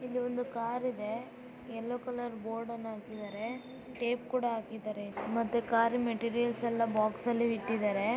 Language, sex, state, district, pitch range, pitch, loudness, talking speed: Kannada, female, Karnataka, Raichur, 225-245 Hz, 235 Hz, -34 LUFS, 130 wpm